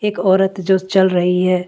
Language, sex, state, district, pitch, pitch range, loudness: Hindi, female, Jharkhand, Ranchi, 190 Hz, 180-190 Hz, -15 LUFS